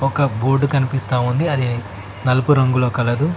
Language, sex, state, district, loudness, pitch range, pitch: Telugu, male, Telangana, Mahabubabad, -18 LUFS, 120-140 Hz, 130 Hz